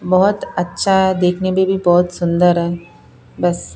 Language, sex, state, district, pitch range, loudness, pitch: Hindi, female, Bihar, Patna, 175-190 Hz, -16 LUFS, 180 Hz